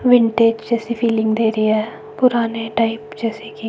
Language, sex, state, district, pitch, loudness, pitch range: Hindi, female, Himachal Pradesh, Shimla, 225 Hz, -18 LUFS, 220-235 Hz